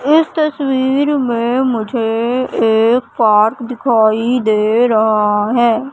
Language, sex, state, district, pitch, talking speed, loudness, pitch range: Hindi, female, Madhya Pradesh, Katni, 235 Hz, 100 wpm, -14 LUFS, 220-260 Hz